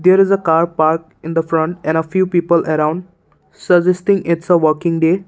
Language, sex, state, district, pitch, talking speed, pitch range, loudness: English, male, Assam, Kamrup Metropolitan, 170 Hz, 205 wpm, 160-180 Hz, -15 LUFS